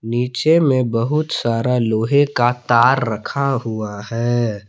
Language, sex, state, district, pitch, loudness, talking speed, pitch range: Hindi, male, Jharkhand, Palamu, 120 Hz, -18 LUFS, 130 wpm, 115-135 Hz